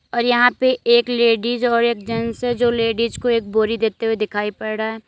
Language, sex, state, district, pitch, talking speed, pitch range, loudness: Hindi, female, Uttar Pradesh, Lalitpur, 230 Hz, 235 wpm, 225-240 Hz, -18 LUFS